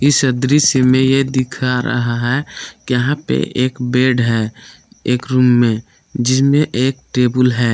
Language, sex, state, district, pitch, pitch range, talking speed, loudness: Hindi, male, Jharkhand, Palamu, 125 Hz, 120-130 Hz, 145 wpm, -15 LUFS